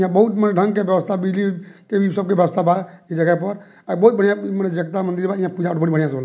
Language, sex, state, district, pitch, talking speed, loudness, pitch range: Bhojpuri, male, Bihar, Muzaffarpur, 190 Hz, 270 wpm, -19 LUFS, 175-200 Hz